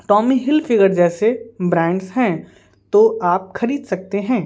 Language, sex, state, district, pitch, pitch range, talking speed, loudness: Hindi, female, Bihar, Patna, 215 Hz, 190-255 Hz, 120 wpm, -17 LUFS